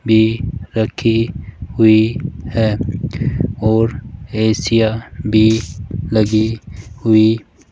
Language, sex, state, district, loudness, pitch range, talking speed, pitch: Hindi, male, Rajasthan, Jaipur, -16 LUFS, 105-115 Hz, 85 wpm, 110 Hz